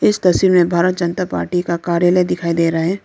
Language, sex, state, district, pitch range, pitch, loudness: Hindi, female, Arunachal Pradesh, Lower Dibang Valley, 170-180 Hz, 175 Hz, -16 LUFS